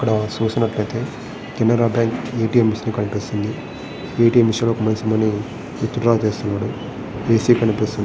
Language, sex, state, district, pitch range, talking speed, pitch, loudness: Telugu, male, Andhra Pradesh, Srikakulam, 105-115 Hz, 125 wpm, 110 Hz, -19 LUFS